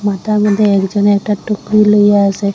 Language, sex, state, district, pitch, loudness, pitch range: Bengali, female, Assam, Hailakandi, 205 Hz, -12 LUFS, 200-210 Hz